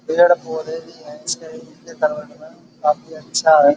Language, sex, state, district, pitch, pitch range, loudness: Hindi, male, Uttar Pradesh, Budaun, 160 Hz, 150-225 Hz, -19 LUFS